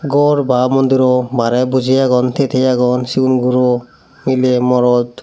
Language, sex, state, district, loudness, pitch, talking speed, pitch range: Chakma, male, Tripura, Dhalai, -14 LUFS, 125 Hz, 135 wpm, 125-130 Hz